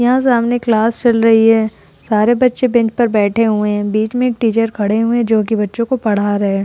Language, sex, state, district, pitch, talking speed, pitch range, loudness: Hindi, female, Uttar Pradesh, Jalaun, 225 Hz, 245 wpm, 215-240 Hz, -14 LUFS